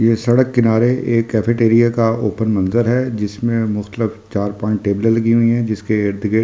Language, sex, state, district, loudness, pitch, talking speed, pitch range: Hindi, male, Delhi, New Delhi, -16 LUFS, 115 Hz, 185 wpm, 105-115 Hz